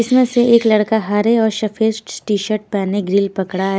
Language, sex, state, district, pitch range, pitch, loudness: Hindi, female, Haryana, Rohtak, 200-225 Hz, 215 Hz, -16 LUFS